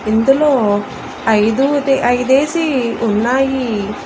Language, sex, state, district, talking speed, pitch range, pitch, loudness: Telugu, female, Andhra Pradesh, Annamaya, 60 wpm, 220-270 Hz, 250 Hz, -14 LUFS